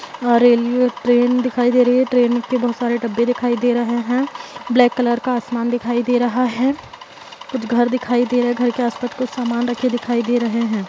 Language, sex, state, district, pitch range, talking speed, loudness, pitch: Hindi, female, Bihar, Kishanganj, 240-250 Hz, 220 wpm, -18 LUFS, 245 Hz